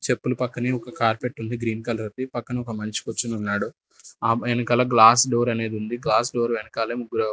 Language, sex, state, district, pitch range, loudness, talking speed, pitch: Telugu, male, Andhra Pradesh, Sri Satya Sai, 110-120 Hz, -23 LUFS, 190 wpm, 120 Hz